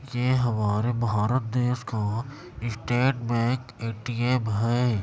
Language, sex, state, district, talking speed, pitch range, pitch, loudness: Hindi, male, Chhattisgarh, Kabirdham, 105 wpm, 115-125 Hz, 120 Hz, -26 LUFS